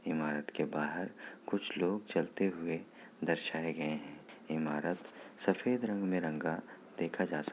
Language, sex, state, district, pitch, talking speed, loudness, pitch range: Hindi, male, Bihar, Kishanganj, 80 Hz, 150 wpm, -37 LUFS, 75-95 Hz